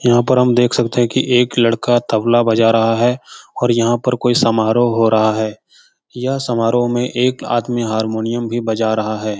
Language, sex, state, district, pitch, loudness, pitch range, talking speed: Hindi, male, Bihar, Jahanabad, 120 Hz, -15 LUFS, 115-120 Hz, 200 wpm